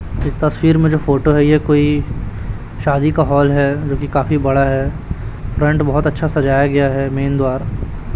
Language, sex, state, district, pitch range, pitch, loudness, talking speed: Hindi, male, Chhattisgarh, Raipur, 130-150 Hz, 140 Hz, -16 LUFS, 175 wpm